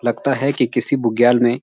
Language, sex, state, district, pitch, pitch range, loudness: Hindi, male, Uttarakhand, Uttarkashi, 120 Hz, 120-135 Hz, -17 LUFS